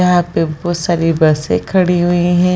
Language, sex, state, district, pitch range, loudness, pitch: Hindi, female, Bihar, Jahanabad, 165-180 Hz, -14 LUFS, 175 Hz